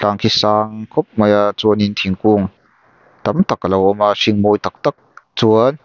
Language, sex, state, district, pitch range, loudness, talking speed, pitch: Mizo, male, Mizoram, Aizawl, 100-110 Hz, -15 LUFS, 185 wpm, 105 Hz